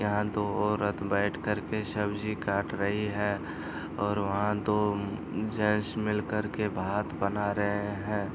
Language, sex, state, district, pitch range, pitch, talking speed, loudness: Hindi, male, Bihar, Araria, 100-105 Hz, 105 Hz, 150 wpm, -30 LUFS